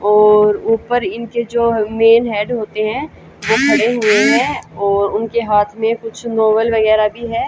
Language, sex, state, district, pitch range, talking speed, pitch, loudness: Hindi, female, Haryana, Charkhi Dadri, 210-235 Hz, 170 wpm, 225 Hz, -15 LUFS